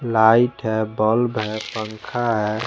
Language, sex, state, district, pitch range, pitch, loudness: Hindi, male, Chandigarh, Chandigarh, 110-115 Hz, 110 Hz, -20 LUFS